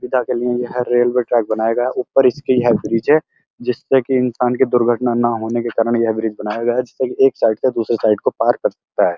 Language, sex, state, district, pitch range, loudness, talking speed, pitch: Hindi, male, Uttar Pradesh, Muzaffarnagar, 115-125 Hz, -17 LUFS, 260 wpm, 120 Hz